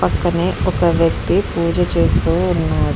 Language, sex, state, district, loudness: Telugu, female, Telangana, Mahabubabad, -16 LUFS